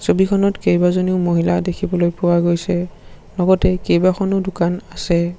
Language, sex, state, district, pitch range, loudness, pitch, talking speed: Assamese, male, Assam, Sonitpur, 175-190 Hz, -17 LUFS, 180 Hz, 110 wpm